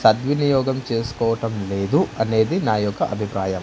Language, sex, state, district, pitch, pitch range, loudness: Telugu, male, Andhra Pradesh, Manyam, 115 Hz, 105-130 Hz, -21 LUFS